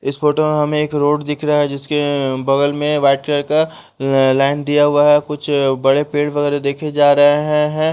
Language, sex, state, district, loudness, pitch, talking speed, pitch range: Hindi, male, Bihar, West Champaran, -15 LUFS, 145 Hz, 210 wpm, 140-150 Hz